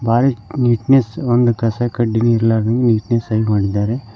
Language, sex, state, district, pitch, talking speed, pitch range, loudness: Kannada, male, Karnataka, Koppal, 115 Hz, 115 wpm, 110-120 Hz, -16 LUFS